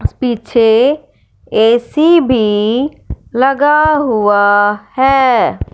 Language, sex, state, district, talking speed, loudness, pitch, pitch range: Hindi, female, Punjab, Fazilka, 65 wpm, -12 LUFS, 245 Hz, 220-280 Hz